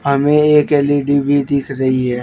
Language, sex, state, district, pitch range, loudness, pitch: Hindi, male, Uttar Pradesh, Shamli, 135-145 Hz, -14 LUFS, 140 Hz